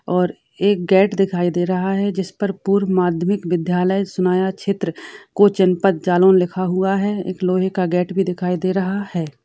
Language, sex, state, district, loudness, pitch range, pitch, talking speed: Hindi, female, Uttar Pradesh, Jalaun, -18 LUFS, 180-195 Hz, 185 Hz, 185 wpm